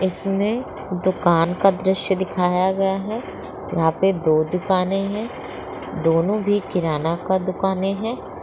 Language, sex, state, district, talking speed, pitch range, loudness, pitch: Hindi, female, Bihar, Muzaffarpur, 130 wpm, 170-195 Hz, -21 LUFS, 190 Hz